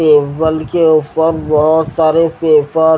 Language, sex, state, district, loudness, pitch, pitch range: Hindi, male, Haryana, Jhajjar, -12 LUFS, 160 Hz, 155-160 Hz